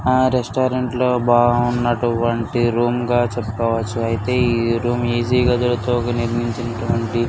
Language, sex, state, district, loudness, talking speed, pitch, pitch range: Telugu, male, Andhra Pradesh, Anantapur, -19 LUFS, 115 wpm, 120 Hz, 115-120 Hz